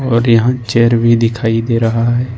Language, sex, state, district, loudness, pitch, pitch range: Hindi, male, Jharkhand, Ranchi, -13 LUFS, 115 Hz, 115-120 Hz